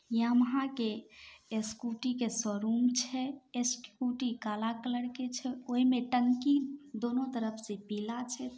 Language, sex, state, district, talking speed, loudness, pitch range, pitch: Maithili, female, Bihar, Samastipur, 135 wpm, -33 LUFS, 230-255 Hz, 245 Hz